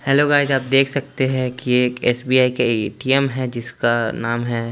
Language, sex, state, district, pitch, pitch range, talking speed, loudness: Hindi, male, Chandigarh, Chandigarh, 125 Hz, 120-135 Hz, 205 wpm, -19 LUFS